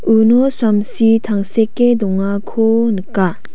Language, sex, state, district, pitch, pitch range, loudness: Garo, female, Meghalaya, South Garo Hills, 225 Hz, 200-230 Hz, -14 LUFS